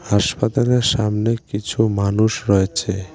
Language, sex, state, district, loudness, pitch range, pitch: Bengali, male, West Bengal, Alipurduar, -18 LUFS, 100-115 Hz, 105 Hz